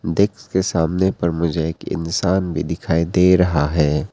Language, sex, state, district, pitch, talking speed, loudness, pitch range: Hindi, male, Arunachal Pradesh, Papum Pare, 85 Hz, 175 wpm, -19 LUFS, 80-95 Hz